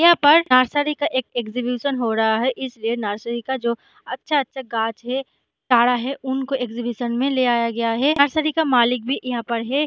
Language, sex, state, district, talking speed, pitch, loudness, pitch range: Hindi, female, Jharkhand, Sahebganj, 205 wpm, 255 Hz, -20 LUFS, 235-275 Hz